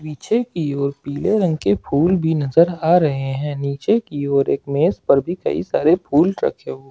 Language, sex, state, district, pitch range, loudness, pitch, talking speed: Hindi, male, Jharkhand, Ranchi, 140-170 Hz, -19 LUFS, 145 Hz, 210 wpm